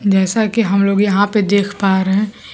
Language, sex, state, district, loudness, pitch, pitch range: Hindi, female, Bihar, Kaimur, -15 LUFS, 200 Hz, 195-205 Hz